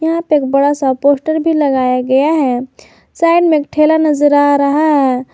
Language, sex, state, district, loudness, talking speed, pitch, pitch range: Hindi, female, Jharkhand, Garhwa, -12 LUFS, 170 wpm, 290 Hz, 270-315 Hz